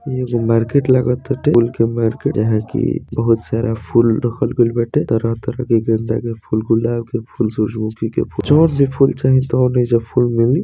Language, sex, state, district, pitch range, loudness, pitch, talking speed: Bhojpuri, male, Uttar Pradesh, Deoria, 115-130 Hz, -17 LUFS, 120 Hz, 190 wpm